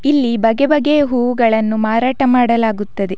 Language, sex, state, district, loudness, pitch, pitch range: Kannada, female, Karnataka, Dakshina Kannada, -14 LUFS, 240 Hz, 220-265 Hz